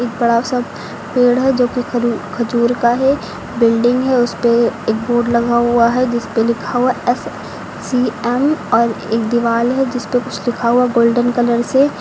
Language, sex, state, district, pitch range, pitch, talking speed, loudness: Hindi, female, Uttar Pradesh, Lucknow, 235-250 Hz, 240 Hz, 180 wpm, -15 LUFS